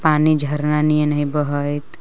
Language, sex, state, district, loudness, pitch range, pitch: Magahi, female, Jharkhand, Palamu, -18 LUFS, 145-150 Hz, 150 Hz